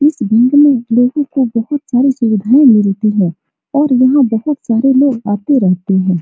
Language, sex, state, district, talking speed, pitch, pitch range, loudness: Hindi, female, Bihar, Supaul, 175 wpm, 245 Hz, 215-275 Hz, -12 LUFS